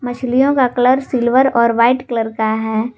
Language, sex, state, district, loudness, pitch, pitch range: Hindi, female, Jharkhand, Garhwa, -15 LUFS, 245 Hz, 230-255 Hz